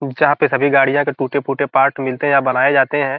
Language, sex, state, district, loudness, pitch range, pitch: Hindi, male, Bihar, Gopalganj, -15 LUFS, 135-140 Hz, 140 Hz